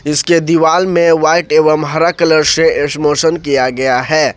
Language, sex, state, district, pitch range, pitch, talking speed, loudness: Hindi, male, Jharkhand, Ranchi, 150-165 Hz, 155 Hz, 165 wpm, -11 LUFS